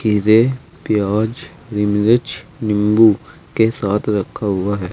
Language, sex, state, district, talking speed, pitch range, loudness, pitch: Hindi, male, Uttar Pradesh, Saharanpur, 120 wpm, 105-115 Hz, -17 LUFS, 110 Hz